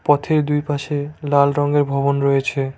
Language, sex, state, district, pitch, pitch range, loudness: Bengali, male, West Bengal, Cooch Behar, 145 Hz, 140-145 Hz, -18 LUFS